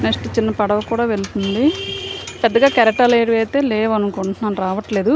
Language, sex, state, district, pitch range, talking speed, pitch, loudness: Telugu, female, Andhra Pradesh, Srikakulam, 200-235 Hz, 150 wpm, 220 Hz, -17 LUFS